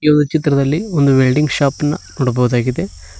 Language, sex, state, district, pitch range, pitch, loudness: Kannada, male, Karnataka, Koppal, 130-150 Hz, 145 Hz, -15 LUFS